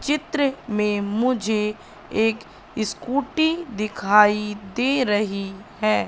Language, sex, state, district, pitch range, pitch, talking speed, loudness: Hindi, female, Madhya Pradesh, Katni, 210-265 Hz, 215 Hz, 90 wpm, -22 LUFS